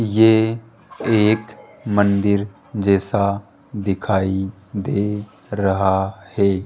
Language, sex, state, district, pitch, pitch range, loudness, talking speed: Hindi, male, Rajasthan, Jaipur, 100 Hz, 95-105 Hz, -19 LUFS, 70 wpm